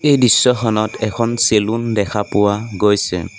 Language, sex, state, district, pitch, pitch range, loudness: Assamese, male, Assam, Sonitpur, 110 Hz, 105-115 Hz, -15 LUFS